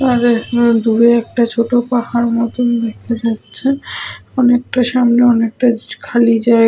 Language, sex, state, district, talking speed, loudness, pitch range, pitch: Bengali, female, Jharkhand, Sahebganj, 115 wpm, -14 LUFS, 230-245 Hz, 235 Hz